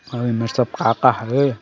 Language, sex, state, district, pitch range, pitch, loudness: Chhattisgarhi, male, Chhattisgarh, Sarguja, 115-130 Hz, 120 Hz, -19 LUFS